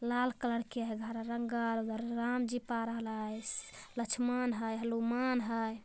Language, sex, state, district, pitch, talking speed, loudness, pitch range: Magahi, female, Bihar, Jamui, 235 Hz, 175 wpm, -36 LUFS, 225-240 Hz